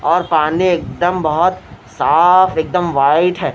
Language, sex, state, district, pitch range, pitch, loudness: Hindi, male, Bihar, Katihar, 155-180 Hz, 175 Hz, -14 LUFS